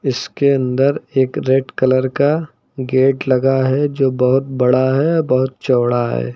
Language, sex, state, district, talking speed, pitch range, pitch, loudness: Hindi, male, Uttar Pradesh, Lucknow, 160 wpm, 130-140 Hz, 130 Hz, -16 LUFS